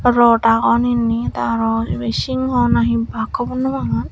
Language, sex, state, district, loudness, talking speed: Chakma, female, Tripura, Dhalai, -17 LUFS, 160 wpm